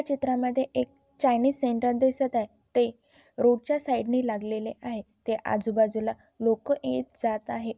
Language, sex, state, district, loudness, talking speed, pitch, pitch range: Marathi, female, Maharashtra, Chandrapur, -27 LUFS, 140 wpm, 245 Hz, 225-265 Hz